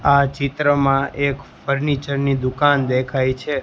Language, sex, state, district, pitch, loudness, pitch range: Gujarati, male, Gujarat, Gandhinagar, 140 Hz, -19 LUFS, 135-140 Hz